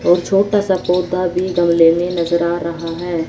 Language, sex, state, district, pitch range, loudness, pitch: Hindi, female, Chandigarh, Chandigarh, 170-180 Hz, -16 LUFS, 175 Hz